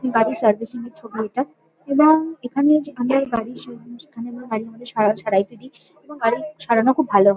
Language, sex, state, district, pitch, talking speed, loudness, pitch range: Bengali, female, West Bengal, Kolkata, 240 Hz, 195 wpm, -20 LUFS, 225-275 Hz